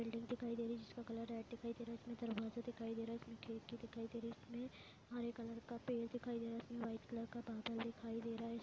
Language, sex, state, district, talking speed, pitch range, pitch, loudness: Hindi, female, Bihar, Lakhisarai, 300 wpm, 230-235 Hz, 230 Hz, -48 LUFS